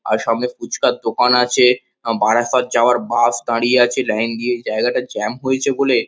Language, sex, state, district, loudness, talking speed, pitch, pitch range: Bengali, male, West Bengal, North 24 Parganas, -17 LUFS, 165 wpm, 120 Hz, 115-125 Hz